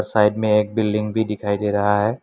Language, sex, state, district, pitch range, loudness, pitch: Hindi, male, Assam, Kamrup Metropolitan, 105-110 Hz, -20 LUFS, 105 Hz